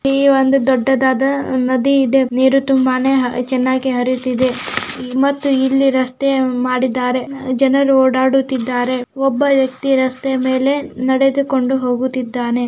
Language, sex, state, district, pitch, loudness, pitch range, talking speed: Kannada, female, Karnataka, Gulbarga, 260 Hz, -15 LUFS, 255-270 Hz, 100 wpm